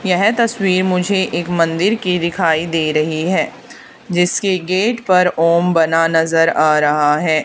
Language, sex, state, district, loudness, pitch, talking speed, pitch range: Hindi, female, Haryana, Charkhi Dadri, -15 LUFS, 175 Hz, 155 wpm, 165-185 Hz